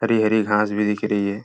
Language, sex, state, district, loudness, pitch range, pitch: Hindi, male, Uttar Pradesh, Jalaun, -20 LUFS, 105-110 Hz, 105 Hz